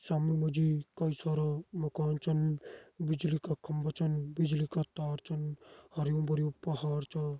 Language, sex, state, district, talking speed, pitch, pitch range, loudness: Garhwali, male, Uttarakhand, Uttarkashi, 155 wpm, 155 Hz, 150-160 Hz, -34 LUFS